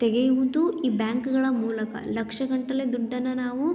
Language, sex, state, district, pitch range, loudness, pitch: Kannada, female, Karnataka, Belgaum, 230-265 Hz, -26 LUFS, 255 Hz